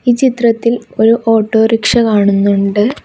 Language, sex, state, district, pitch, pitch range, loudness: Malayalam, female, Kerala, Kasaragod, 225 Hz, 210-235 Hz, -11 LUFS